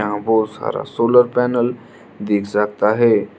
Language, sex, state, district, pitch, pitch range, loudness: Hindi, male, Arunachal Pradesh, Lower Dibang Valley, 110 Hz, 105-120 Hz, -17 LUFS